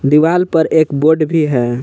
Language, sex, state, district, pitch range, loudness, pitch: Hindi, male, Jharkhand, Palamu, 140-160 Hz, -13 LUFS, 155 Hz